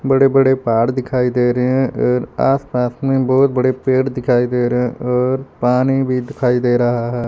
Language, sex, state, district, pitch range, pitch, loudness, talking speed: Hindi, male, Punjab, Fazilka, 125-130 Hz, 125 Hz, -16 LUFS, 200 wpm